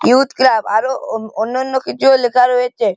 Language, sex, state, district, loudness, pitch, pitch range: Bengali, male, West Bengal, Malda, -15 LUFS, 250 Hz, 225-265 Hz